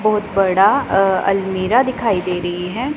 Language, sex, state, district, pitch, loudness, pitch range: Hindi, female, Punjab, Pathankot, 195 Hz, -16 LUFS, 185-225 Hz